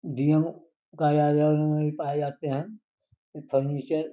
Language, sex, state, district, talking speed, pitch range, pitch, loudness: Hindi, male, Uttar Pradesh, Gorakhpur, 145 wpm, 145-155 Hz, 150 Hz, -26 LUFS